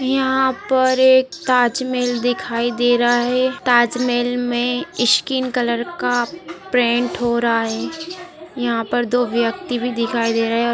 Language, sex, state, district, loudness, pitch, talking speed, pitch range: Hindi, female, Bihar, Gaya, -18 LUFS, 245 Hz, 155 wpm, 240-260 Hz